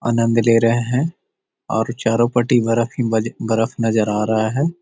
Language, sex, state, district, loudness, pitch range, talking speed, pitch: Magahi, male, Bihar, Jahanabad, -18 LUFS, 110-120 Hz, 185 wpm, 115 Hz